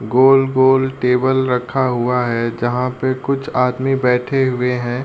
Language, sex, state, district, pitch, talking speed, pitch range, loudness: Hindi, male, Uttar Pradesh, Deoria, 125 Hz, 155 wpm, 125-130 Hz, -16 LUFS